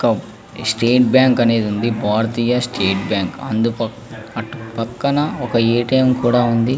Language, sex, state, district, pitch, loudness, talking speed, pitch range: Telugu, male, Andhra Pradesh, Krishna, 115 Hz, -17 LUFS, 140 wpm, 110-125 Hz